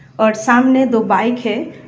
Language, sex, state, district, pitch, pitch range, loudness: Hindi, female, Tripura, West Tripura, 225 Hz, 220-240 Hz, -14 LUFS